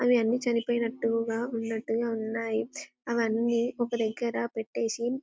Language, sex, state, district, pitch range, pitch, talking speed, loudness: Telugu, female, Telangana, Karimnagar, 225-240 Hz, 235 Hz, 90 wpm, -29 LUFS